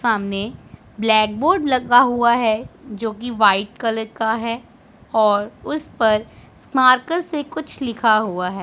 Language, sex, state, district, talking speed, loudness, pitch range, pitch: Hindi, female, Punjab, Pathankot, 145 wpm, -19 LUFS, 215-255 Hz, 225 Hz